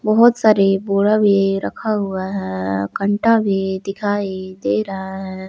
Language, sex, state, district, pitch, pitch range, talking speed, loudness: Hindi, male, Jharkhand, Palamu, 195 Hz, 190-205 Hz, 140 wpm, -18 LUFS